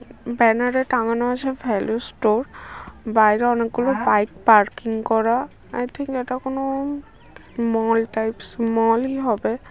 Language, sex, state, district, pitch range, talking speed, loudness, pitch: Bengali, female, West Bengal, Purulia, 225-255 Hz, 125 wpm, -21 LUFS, 235 Hz